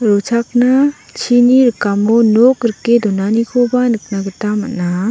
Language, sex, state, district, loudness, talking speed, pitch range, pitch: Garo, female, Meghalaya, West Garo Hills, -13 LUFS, 105 wpm, 210-245 Hz, 230 Hz